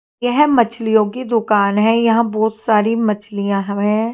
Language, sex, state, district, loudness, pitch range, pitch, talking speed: Hindi, female, Haryana, Charkhi Dadri, -16 LUFS, 210-230 Hz, 220 Hz, 145 wpm